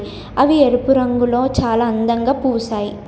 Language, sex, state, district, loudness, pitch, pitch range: Telugu, female, Telangana, Komaram Bheem, -16 LUFS, 245 Hz, 230-265 Hz